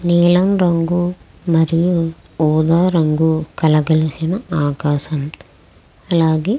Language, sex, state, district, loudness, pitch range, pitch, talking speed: Telugu, female, Andhra Pradesh, Krishna, -16 LUFS, 155-175 Hz, 165 Hz, 80 wpm